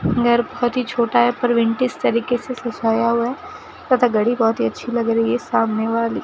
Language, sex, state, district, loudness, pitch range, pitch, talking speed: Hindi, female, Rajasthan, Bikaner, -19 LUFS, 230-245 Hz, 240 Hz, 220 wpm